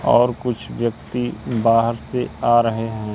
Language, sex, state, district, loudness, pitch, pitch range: Hindi, male, Madhya Pradesh, Katni, -20 LUFS, 120 Hz, 115-120 Hz